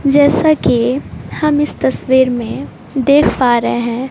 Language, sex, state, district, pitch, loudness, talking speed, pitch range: Hindi, female, Bihar, West Champaran, 260 Hz, -14 LUFS, 145 wpm, 240-285 Hz